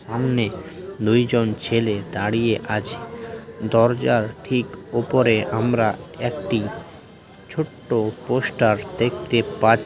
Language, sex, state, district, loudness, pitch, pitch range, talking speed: Bengali, male, West Bengal, Dakshin Dinajpur, -22 LUFS, 115 Hz, 110-120 Hz, 80 wpm